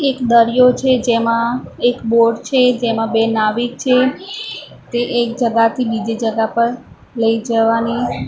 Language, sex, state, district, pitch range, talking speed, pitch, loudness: Gujarati, female, Maharashtra, Mumbai Suburban, 230-250 Hz, 145 wpm, 235 Hz, -16 LUFS